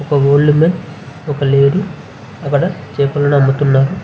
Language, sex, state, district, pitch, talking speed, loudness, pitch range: Telugu, male, Andhra Pradesh, Visakhapatnam, 145 Hz, 120 wpm, -13 LUFS, 140-155 Hz